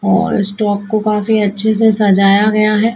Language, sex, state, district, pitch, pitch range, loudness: Hindi, female, Madhya Pradesh, Dhar, 215 Hz, 205-220 Hz, -13 LUFS